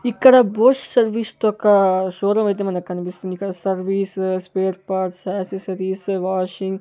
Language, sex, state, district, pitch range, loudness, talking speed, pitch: Telugu, male, Andhra Pradesh, Sri Satya Sai, 185-205 Hz, -19 LUFS, 125 wpm, 190 Hz